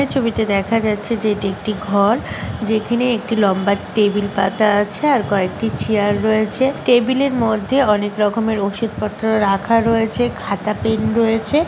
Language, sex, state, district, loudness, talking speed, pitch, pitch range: Bengali, female, West Bengal, Paschim Medinipur, -17 LUFS, 130 wpm, 220 Hz, 205-230 Hz